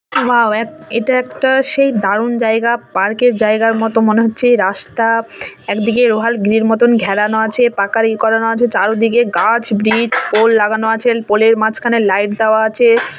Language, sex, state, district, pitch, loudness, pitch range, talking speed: Bengali, male, West Bengal, Dakshin Dinajpur, 225 Hz, -13 LUFS, 220-235 Hz, 175 wpm